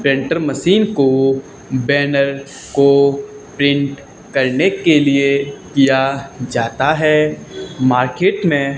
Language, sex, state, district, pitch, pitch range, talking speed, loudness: Hindi, male, Haryana, Charkhi Dadri, 140 Hz, 135-145 Hz, 95 wpm, -15 LUFS